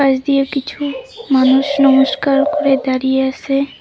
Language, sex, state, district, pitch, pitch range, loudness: Bengali, female, West Bengal, Cooch Behar, 275 Hz, 265-280 Hz, -15 LUFS